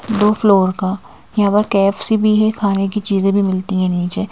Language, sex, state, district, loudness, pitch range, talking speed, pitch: Hindi, female, Madhya Pradesh, Bhopal, -16 LUFS, 195-210 Hz, 210 wpm, 200 Hz